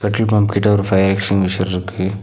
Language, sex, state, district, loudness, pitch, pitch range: Tamil, male, Tamil Nadu, Nilgiris, -16 LUFS, 100 Hz, 95-105 Hz